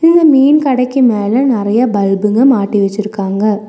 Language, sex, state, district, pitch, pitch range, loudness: Tamil, female, Tamil Nadu, Nilgiris, 220 Hz, 205-265 Hz, -11 LUFS